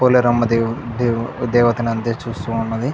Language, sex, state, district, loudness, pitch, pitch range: Telugu, male, Andhra Pradesh, Chittoor, -19 LUFS, 115 Hz, 115-120 Hz